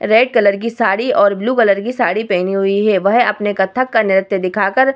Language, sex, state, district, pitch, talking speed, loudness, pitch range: Hindi, female, Bihar, Vaishali, 205 Hz, 240 wpm, -14 LUFS, 195-235 Hz